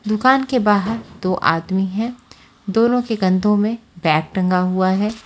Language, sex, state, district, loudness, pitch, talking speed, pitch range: Hindi, female, Haryana, Charkhi Dadri, -18 LUFS, 210 Hz, 160 wpm, 185-230 Hz